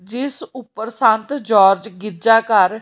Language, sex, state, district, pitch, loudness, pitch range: Punjabi, female, Punjab, Kapurthala, 225 Hz, -16 LUFS, 210-240 Hz